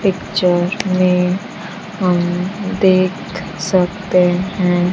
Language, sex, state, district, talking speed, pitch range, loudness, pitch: Hindi, female, Bihar, Kaimur, 85 wpm, 180-195 Hz, -16 LUFS, 185 Hz